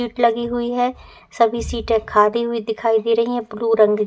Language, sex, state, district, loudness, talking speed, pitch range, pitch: Hindi, female, Uttar Pradesh, Etah, -19 LUFS, 205 wpm, 225-235 Hz, 230 Hz